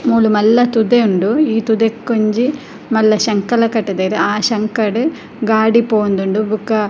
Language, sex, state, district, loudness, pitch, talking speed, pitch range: Tulu, female, Karnataka, Dakshina Kannada, -14 LUFS, 220 Hz, 120 wpm, 210-230 Hz